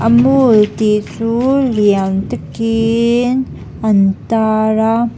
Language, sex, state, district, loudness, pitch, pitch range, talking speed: Mizo, female, Mizoram, Aizawl, -13 LUFS, 225 Hz, 210-235 Hz, 95 wpm